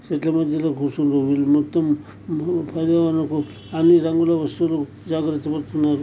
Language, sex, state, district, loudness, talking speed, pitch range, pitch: Telugu, male, Andhra Pradesh, Chittoor, -21 LUFS, 100 wpm, 145-165 Hz, 155 Hz